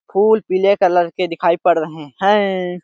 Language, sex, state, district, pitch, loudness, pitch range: Hindi, male, Chhattisgarh, Sarguja, 180 Hz, -16 LUFS, 170-195 Hz